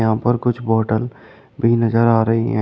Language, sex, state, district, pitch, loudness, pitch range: Hindi, male, Uttar Pradesh, Shamli, 115 Hz, -17 LUFS, 110-120 Hz